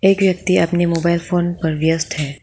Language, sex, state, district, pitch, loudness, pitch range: Hindi, female, Arunachal Pradesh, Lower Dibang Valley, 170 Hz, -17 LUFS, 160-180 Hz